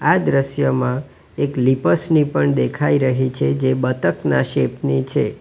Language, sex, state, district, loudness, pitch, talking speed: Gujarati, male, Gujarat, Valsad, -18 LUFS, 130 Hz, 155 wpm